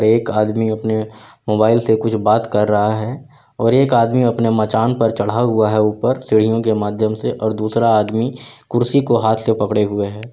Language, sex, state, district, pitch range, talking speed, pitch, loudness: Hindi, male, Bihar, Sitamarhi, 110-115 Hz, 195 wpm, 110 Hz, -16 LUFS